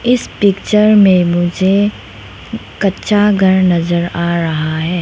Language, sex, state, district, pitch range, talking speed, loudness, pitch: Hindi, female, Arunachal Pradesh, Lower Dibang Valley, 170-205 Hz, 120 wpm, -13 LUFS, 190 Hz